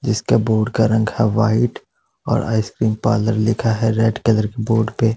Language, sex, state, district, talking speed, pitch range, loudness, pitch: Hindi, male, Punjab, Pathankot, 195 wpm, 110-115 Hz, -18 LUFS, 110 Hz